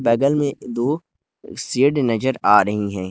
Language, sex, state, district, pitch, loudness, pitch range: Hindi, male, Jharkhand, Garhwa, 125 Hz, -19 LUFS, 105-140 Hz